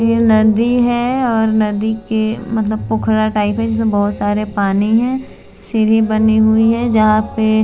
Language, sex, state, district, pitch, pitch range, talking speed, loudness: Hindi, female, Bihar, Patna, 220 Hz, 215-225 Hz, 165 wpm, -15 LUFS